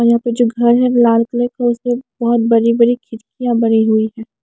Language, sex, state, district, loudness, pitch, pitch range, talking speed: Hindi, female, Maharashtra, Mumbai Suburban, -14 LUFS, 235 Hz, 230-240 Hz, 230 wpm